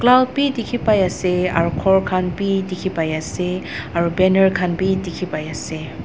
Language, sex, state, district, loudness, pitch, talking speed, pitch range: Nagamese, female, Nagaland, Dimapur, -19 LUFS, 185 Hz, 110 wpm, 170-190 Hz